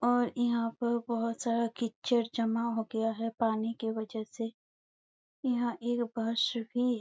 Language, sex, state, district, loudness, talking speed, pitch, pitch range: Hindi, female, Chhattisgarh, Bastar, -32 LUFS, 170 wpm, 230 Hz, 225-240 Hz